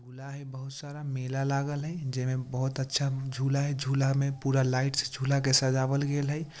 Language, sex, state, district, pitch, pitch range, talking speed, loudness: Bajjika, male, Bihar, Vaishali, 135 Hz, 130-140 Hz, 210 wpm, -29 LUFS